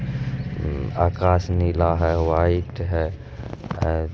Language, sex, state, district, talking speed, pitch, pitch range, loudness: Maithili, male, Bihar, Madhepura, 85 wpm, 85 Hz, 85-95 Hz, -23 LUFS